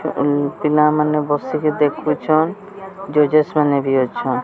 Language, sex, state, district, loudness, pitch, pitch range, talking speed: Odia, male, Odisha, Sambalpur, -17 LUFS, 150 Hz, 145-155 Hz, 95 wpm